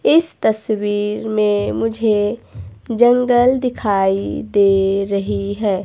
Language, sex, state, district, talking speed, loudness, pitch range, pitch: Hindi, female, Himachal Pradesh, Shimla, 90 wpm, -17 LUFS, 195-225 Hz, 205 Hz